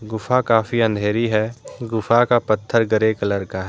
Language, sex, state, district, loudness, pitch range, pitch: Hindi, male, Jharkhand, Deoghar, -19 LUFS, 110-115 Hz, 110 Hz